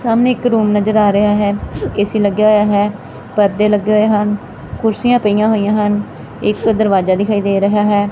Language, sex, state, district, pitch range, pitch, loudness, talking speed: Punjabi, female, Punjab, Fazilka, 205-215 Hz, 210 Hz, -14 LUFS, 190 wpm